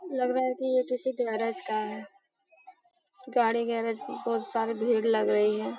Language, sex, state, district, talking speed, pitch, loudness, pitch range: Hindi, female, Bihar, Lakhisarai, 195 wpm, 235 Hz, -29 LUFS, 225-260 Hz